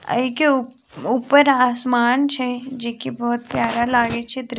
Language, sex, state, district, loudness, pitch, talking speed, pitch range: Maithili, female, Bihar, Sitamarhi, -19 LUFS, 250 Hz, 170 wpm, 240-260 Hz